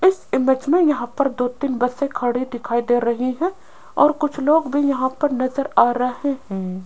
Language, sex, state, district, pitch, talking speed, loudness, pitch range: Hindi, female, Rajasthan, Jaipur, 260 Hz, 200 wpm, -20 LUFS, 245-285 Hz